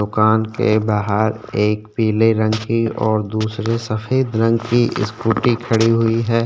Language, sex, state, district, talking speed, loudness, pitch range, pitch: Hindi, male, Uttarakhand, Tehri Garhwal, 150 wpm, -18 LUFS, 110-115 Hz, 110 Hz